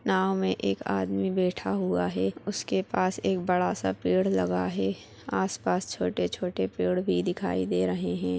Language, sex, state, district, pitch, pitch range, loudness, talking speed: Hindi, female, Chhattisgarh, Bilaspur, 95 Hz, 90-105 Hz, -28 LUFS, 180 wpm